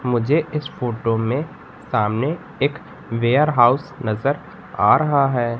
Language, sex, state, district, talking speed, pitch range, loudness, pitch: Hindi, male, Madhya Pradesh, Katni, 120 wpm, 120-150 Hz, -20 LUFS, 135 Hz